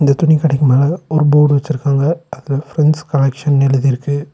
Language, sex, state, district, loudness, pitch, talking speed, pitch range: Tamil, male, Tamil Nadu, Nilgiris, -14 LUFS, 145 Hz, 150 wpm, 140-155 Hz